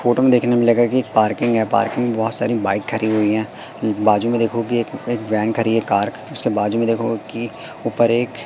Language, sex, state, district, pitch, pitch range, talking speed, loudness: Hindi, male, Madhya Pradesh, Katni, 115 Hz, 110-120 Hz, 220 wpm, -19 LUFS